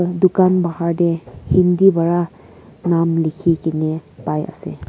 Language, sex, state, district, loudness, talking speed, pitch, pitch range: Nagamese, female, Nagaland, Kohima, -17 LUFS, 125 wpm, 170 Hz, 155-175 Hz